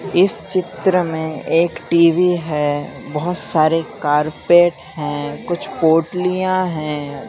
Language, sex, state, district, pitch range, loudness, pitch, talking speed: Hindi, male, Gujarat, Valsad, 150-180 Hz, -18 LUFS, 165 Hz, 105 wpm